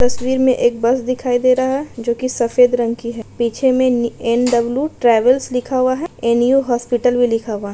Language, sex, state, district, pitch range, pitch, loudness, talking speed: Hindi, female, Bihar, East Champaran, 235-255 Hz, 245 Hz, -16 LUFS, 200 wpm